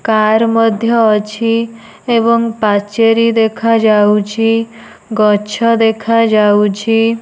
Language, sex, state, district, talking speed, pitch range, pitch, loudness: Odia, female, Odisha, Nuapada, 65 wpm, 215-230 Hz, 225 Hz, -12 LUFS